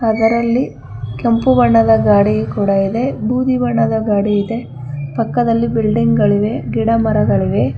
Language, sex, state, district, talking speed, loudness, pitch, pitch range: Kannada, female, Karnataka, Bangalore, 115 wpm, -15 LUFS, 220 Hz, 200-235 Hz